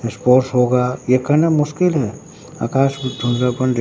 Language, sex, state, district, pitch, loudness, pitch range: Hindi, male, Bihar, Katihar, 130 Hz, -17 LUFS, 125-145 Hz